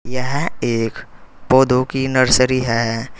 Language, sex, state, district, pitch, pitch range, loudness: Hindi, male, Uttar Pradesh, Saharanpur, 130 Hz, 115-130 Hz, -17 LUFS